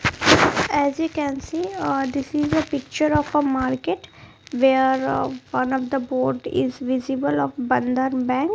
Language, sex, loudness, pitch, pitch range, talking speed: English, female, -21 LUFS, 265 Hz, 255-295 Hz, 160 wpm